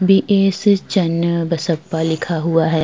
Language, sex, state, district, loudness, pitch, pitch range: Hindi, female, Bihar, Vaishali, -17 LUFS, 170 Hz, 165-195 Hz